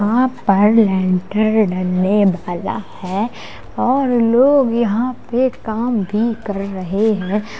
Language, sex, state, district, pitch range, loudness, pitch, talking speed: Hindi, female, Uttar Pradesh, Jalaun, 195-235 Hz, -17 LUFS, 215 Hz, 120 wpm